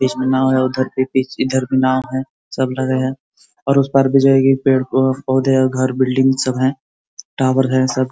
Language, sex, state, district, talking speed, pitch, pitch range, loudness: Hindi, male, Uttar Pradesh, Ghazipur, 190 wpm, 130 Hz, 130-135 Hz, -16 LUFS